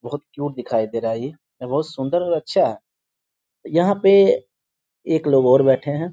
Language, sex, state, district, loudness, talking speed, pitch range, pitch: Hindi, male, Bihar, Sitamarhi, -19 LUFS, 195 wpm, 130-170 Hz, 145 Hz